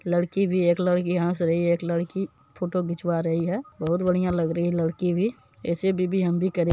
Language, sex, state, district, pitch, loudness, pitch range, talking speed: Maithili, male, Bihar, Supaul, 175 Hz, -25 LUFS, 170-185 Hz, 250 wpm